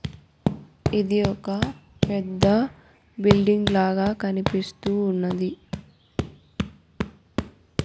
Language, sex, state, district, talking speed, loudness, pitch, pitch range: Telugu, female, Andhra Pradesh, Annamaya, 55 wpm, -25 LUFS, 200 Hz, 190-205 Hz